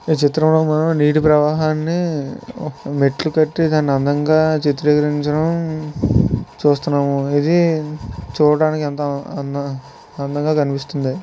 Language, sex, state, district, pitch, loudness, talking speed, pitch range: Telugu, male, Andhra Pradesh, Visakhapatnam, 150 Hz, -17 LUFS, 80 wpm, 140-155 Hz